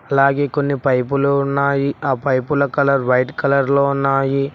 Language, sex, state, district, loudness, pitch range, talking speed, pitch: Telugu, male, Telangana, Mahabubabad, -17 LUFS, 135-140 Hz, 145 wpm, 140 Hz